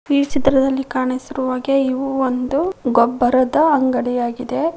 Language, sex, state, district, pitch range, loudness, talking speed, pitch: Kannada, female, Karnataka, Koppal, 255-275 Hz, -18 LUFS, 100 wpm, 260 Hz